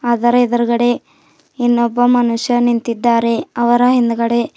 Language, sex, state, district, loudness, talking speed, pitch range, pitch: Kannada, female, Karnataka, Bidar, -14 LUFS, 90 wpm, 235-245 Hz, 240 Hz